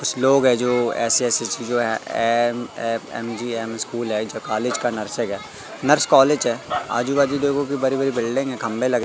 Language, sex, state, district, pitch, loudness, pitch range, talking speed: Hindi, male, Madhya Pradesh, Katni, 120 Hz, -21 LUFS, 115-135 Hz, 185 wpm